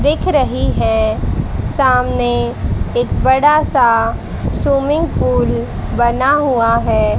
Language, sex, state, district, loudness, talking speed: Hindi, female, Haryana, Charkhi Dadri, -15 LUFS, 100 wpm